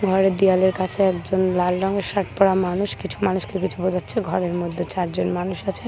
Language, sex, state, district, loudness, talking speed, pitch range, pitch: Bengali, female, West Bengal, Paschim Medinipur, -22 LUFS, 185 wpm, 180-195 Hz, 185 Hz